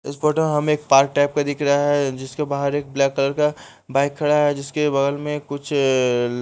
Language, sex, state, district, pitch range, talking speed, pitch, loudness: Hindi, male, Bihar, West Champaran, 140-150 Hz, 235 wpm, 145 Hz, -20 LUFS